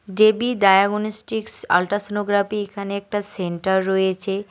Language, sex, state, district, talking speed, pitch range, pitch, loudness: Bengali, male, West Bengal, Cooch Behar, 95 wpm, 190-210 Hz, 200 Hz, -21 LUFS